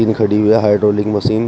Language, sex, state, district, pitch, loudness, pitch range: Hindi, male, Uttar Pradesh, Shamli, 105 Hz, -14 LUFS, 105-110 Hz